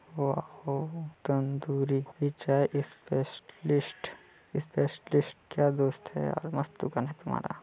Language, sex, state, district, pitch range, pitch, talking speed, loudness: Hindi, male, Chhattisgarh, Balrampur, 135-145 Hz, 140 Hz, 110 wpm, -32 LUFS